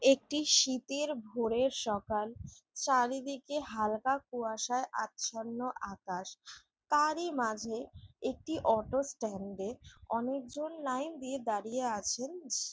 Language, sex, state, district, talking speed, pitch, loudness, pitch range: Bengali, female, West Bengal, Jalpaiguri, 105 wpm, 255 Hz, -34 LUFS, 225-275 Hz